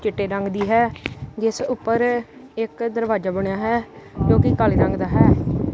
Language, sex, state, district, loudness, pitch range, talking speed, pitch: Punjabi, female, Punjab, Kapurthala, -20 LUFS, 200-235 Hz, 165 wpm, 225 Hz